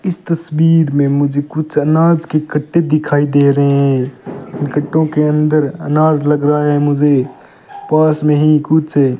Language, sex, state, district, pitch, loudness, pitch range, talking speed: Hindi, male, Rajasthan, Bikaner, 150 Hz, -13 LUFS, 145-155 Hz, 165 wpm